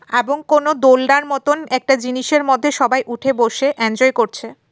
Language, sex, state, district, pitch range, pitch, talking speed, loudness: Bengali, female, Tripura, West Tripura, 255-285 Hz, 265 Hz, 150 wpm, -16 LUFS